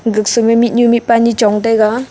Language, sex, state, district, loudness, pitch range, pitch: Wancho, female, Arunachal Pradesh, Longding, -12 LUFS, 220-235 Hz, 230 Hz